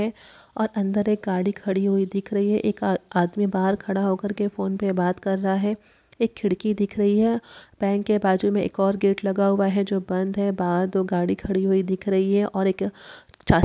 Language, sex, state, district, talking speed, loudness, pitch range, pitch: Hindi, male, Chhattisgarh, Sarguja, 235 wpm, -23 LUFS, 190-205 Hz, 195 Hz